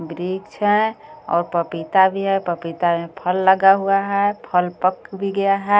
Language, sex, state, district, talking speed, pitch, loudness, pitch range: Hindi, female, Jharkhand, Garhwa, 175 wpm, 190 Hz, -19 LUFS, 175-200 Hz